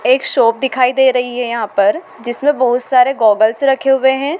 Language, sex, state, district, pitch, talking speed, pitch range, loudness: Hindi, female, Madhya Pradesh, Dhar, 255 Hz, 205 wpm, 240-270 Hz, -13 LUFS